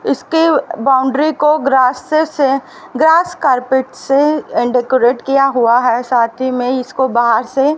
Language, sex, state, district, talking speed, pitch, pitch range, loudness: Hindi, female, Haryana, Rohtak, 140 wpm, 265 Hz, 250-300 Hz, -13 LUFS